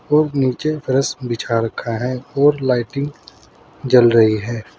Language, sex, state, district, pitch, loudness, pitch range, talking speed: Hindi, male, Uttar Pradesh, Saharanpur, 130 Hz, -18 LUFS, 115-145 Hz, 140 wpm